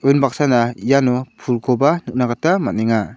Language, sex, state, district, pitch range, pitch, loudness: Garo, male, Meghalaya, South Garo Hills, 120-140 Hz, 125 Hz, -17 LUFS